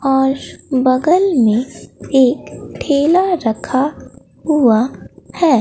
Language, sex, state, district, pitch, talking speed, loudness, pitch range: Hindi, female, Bihar, Katihar, 270 Hz, 85 wpm, -15 LUFS, 255-315 Hz